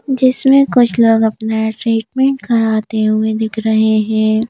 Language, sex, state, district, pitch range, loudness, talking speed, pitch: Hindi, female, Madhya Pradesh, Bhopal, 220-245 Hz, -14 LUFS, 135 wpm, 220 Hz